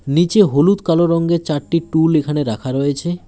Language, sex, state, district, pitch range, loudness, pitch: Bengali, male, West Bengal, Alipurduar, 145-170 Hz, -16 LUFS, 165 Hz